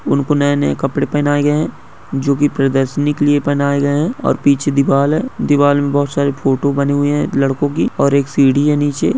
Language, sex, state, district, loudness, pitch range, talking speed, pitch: Hindi, male, Uttar Pradesh, Muzaffarnagar, -15 LUFS, 140-145 Hz, 220 wpm, 140 Hz